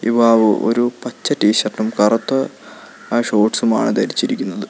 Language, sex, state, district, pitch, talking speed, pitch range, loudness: Malayalam, male, Kerala, Kollam, 115 Hz, 100 wpm, 110-120 Hz, -17 LUFS